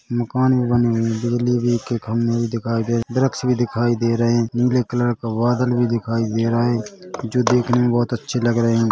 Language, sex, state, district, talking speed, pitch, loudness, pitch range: Hindi, male, Chhattisgarh, Rajnandgaon, 250 wpm, 120 Hz, -19 LUFS, 115-120 Hz